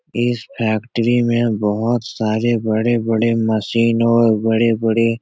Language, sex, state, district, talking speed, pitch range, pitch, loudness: Hindi, male, Bihar, Supaul, 115 wpm, 110-120 Hz, 115 Hz, -17 LUFS